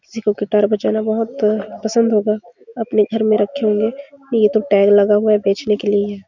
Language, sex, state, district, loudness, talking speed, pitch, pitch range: Hindi, female, Chhattisgarh, Bastar, -16 LUFS, 230 wpm, 215 Hz, 205-225 Hz